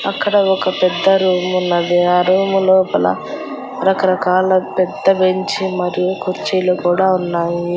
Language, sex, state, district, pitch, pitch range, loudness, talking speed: Telugu, female, Andhra Pradesh, Annamaya, 185 Hz, 180-190 Hz, -15 LUFS, 110 wpm